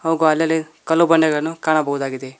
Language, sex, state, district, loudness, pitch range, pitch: Kannada, male, Karnataka, Koppal, -18 LUFS, 150-160 Hz, 155 Hz